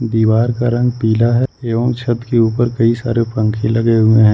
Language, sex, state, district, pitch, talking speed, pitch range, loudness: Hindi, male, Jharkhand, Ranchi, 115 Hz, 205 wpm, 110-120 Hz, -15 LUFS